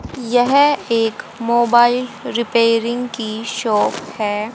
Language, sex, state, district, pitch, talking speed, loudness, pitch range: Hindi, female, Haryana, Rohtak, 235 Hz, 90 wpm, -17 LUFS, 225-245 Hz